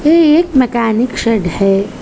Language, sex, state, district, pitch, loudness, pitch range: Hindi, female, Uttar Pradesh, Ghazipur, 235 Hz, -12 LUFS, 205-295 Hz